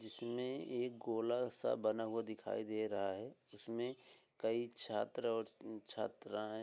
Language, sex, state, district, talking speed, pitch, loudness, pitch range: Hindi, male, Uttar Pradesh, Hamirpur, 145 wpm, 115 Hz, -42 LUFS, 110-120 Hz